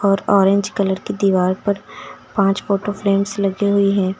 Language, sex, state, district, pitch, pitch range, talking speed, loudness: Hindi, female, Uttar Pradesh, Lucknow, 195 Hz, 195-200 Hz, 170 wpm, -18 LUFS